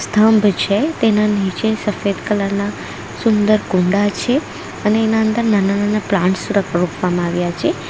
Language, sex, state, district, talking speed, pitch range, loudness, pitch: Gujarati, female, Gujarat, Valsad, 145 wpm, 195-220 Hz, -16 LUFS, 205 Hz